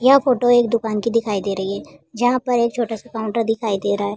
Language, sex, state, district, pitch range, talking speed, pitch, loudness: Hindi, female, Uttar Pradesh, Jalaun, 210-245 Hz, 275 wpm, 230 Hz, -19 LUFS